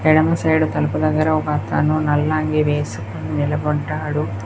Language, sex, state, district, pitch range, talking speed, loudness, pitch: Telugu, female, Telangana, Komaram Bheem, 145-155 Hz, 120 wpm, -19 LUFS, 150 Hz